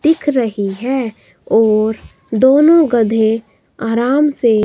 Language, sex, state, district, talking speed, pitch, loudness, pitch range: Hindi, female, Himachal Pradesh, Shimla, 105 wpm, 235 Hz, -14 LUFS, 220-275 Hz